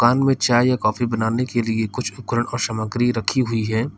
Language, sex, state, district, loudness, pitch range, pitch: Hindi, male, Uttar Pradesh, Lalitpur, -20 LUFS, 110-125 Hz, 120 Hz